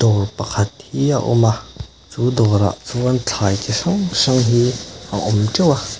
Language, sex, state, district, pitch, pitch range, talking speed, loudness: Mizo, male, Mizoram, Aizawl, 120 Hz, 105-130 Hz, 180 wpm, -18 LUFS